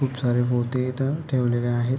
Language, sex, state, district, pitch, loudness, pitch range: Marathi, male, Maharashtra, Sindhudurg, 125 Hz, -24 LUFS, 120-130 Hz